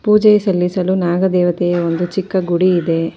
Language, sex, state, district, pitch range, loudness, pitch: Kannada, female, Karnataka, Bangalore, 175-190 Hz, -15 LUFS, 180 Hz